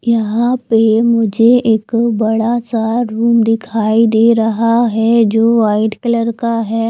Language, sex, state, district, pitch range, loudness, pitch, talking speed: Hindi, female, Himachal Pradesh, Shimla, 220-235 Hz, -13 LUFS, 225 Hz, 130 wpm